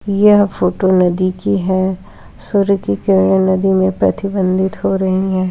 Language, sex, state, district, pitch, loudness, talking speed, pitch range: Hindi, female, Bihar, Saharsa, 190 Hz, -14 LUFS, 150 wpm, 185-195 Hz